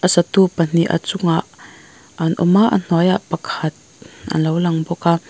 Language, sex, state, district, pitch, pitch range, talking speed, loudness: Mizo, female, Mizoram, Aizawl, 170 Hz, 165-180 Hz, 160 wpm, -17 LUFS